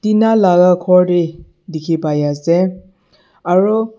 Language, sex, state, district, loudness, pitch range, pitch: Nagamese, male, Nagaland, Dimapur, -14 LUFS, 170-190 Hz, 180 Hz